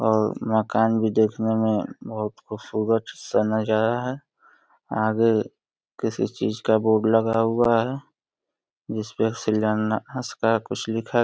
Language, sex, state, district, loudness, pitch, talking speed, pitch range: Hindi, male, Uttar Pradesh, Deoria, -23 LUFS, 110 Hz, 125 wpm, 110-115 Hz